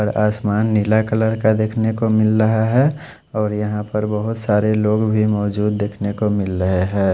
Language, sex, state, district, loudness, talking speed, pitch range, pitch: Hindi, male, Odisha, Khordha, -18 LUFS, 210 wpm, 105-110 Hz, 105 Hz